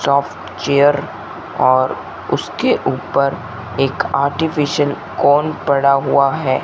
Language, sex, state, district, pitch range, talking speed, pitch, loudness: Hindi, male, Rajasthan, Bikaner, 135-145 Hz, 100 wpm, 140 Hz, -16 LUFS